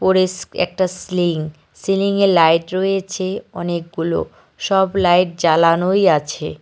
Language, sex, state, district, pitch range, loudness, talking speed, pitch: Bengali, male, West Bengal, Cooch Behar, 170-195 Hz, -17 LUFS, 100 wpm, 185 Hz